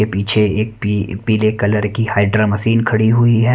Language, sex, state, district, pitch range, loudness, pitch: Hindi, male, Haryana, Charkhi Dadri, 105-115 Hz, -15 LUFS, 110 Hz